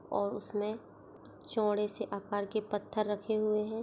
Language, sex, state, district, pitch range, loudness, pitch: Hindi, female, Chhattisgarh, Bastar, 205-215 Hz, -34 LUFS, 210 Hz